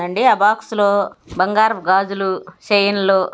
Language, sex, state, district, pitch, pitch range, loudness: Telugu, female, Andhra Pradesh, Guntur, 200 Hz, 190-205 Hz, -16 LUFS